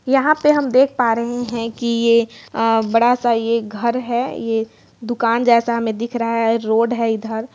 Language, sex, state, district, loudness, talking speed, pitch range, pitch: Hindi, female, Bihar, Gopalganj, -18 LUFS, 190 wpm, 225-240 Hz, 235 Hz